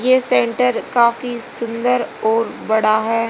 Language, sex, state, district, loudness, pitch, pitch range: Hindi, female, Haryana, Jhajjar, -17 LUFS, 235 Hz, 230-250 Hz